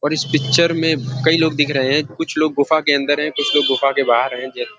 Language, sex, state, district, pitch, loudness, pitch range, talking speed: Hindi, male, Uttarakhand, Uttarkashi, 145 Hz, -17 LUFS, 135-155 Hz, 290 wpm